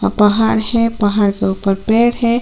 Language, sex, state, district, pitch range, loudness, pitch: Hindi, female, Chhattisgarh, Sukma, 200-230 Hz, -14 LUFS, 220 Hz